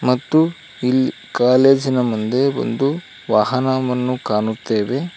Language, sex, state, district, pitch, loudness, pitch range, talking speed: Kannada, male, Karnataka, Koppal, 125 Hz, -18 LUFS, 120-135 Hz, 95 wpm